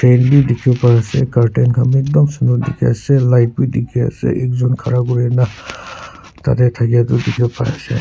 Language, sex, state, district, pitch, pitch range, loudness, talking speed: Nagamese, male, Nagaland, Kohima, 125 Hz, 120-130 Hz, -14 LUFS, 195 wpm